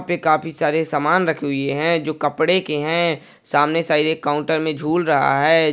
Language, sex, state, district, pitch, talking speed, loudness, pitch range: Hindi, male, Andhra Pradesh, Visakhapatnam, 155 Hz, 190 wpm, -19 LUFS, 150-165 Hz